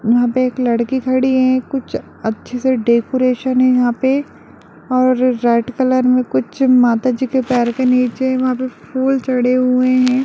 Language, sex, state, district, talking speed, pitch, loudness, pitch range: Hindi, female, Bihar, Darbhanga, 165 wpm, 255 Hz, -15 LUFS, 245-260 Hz